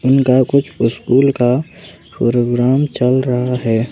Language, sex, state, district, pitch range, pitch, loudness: Hindi, male, Madhya Pradesh, Bhopal, 120-135 Hz, 125 Hz, -15 LUFS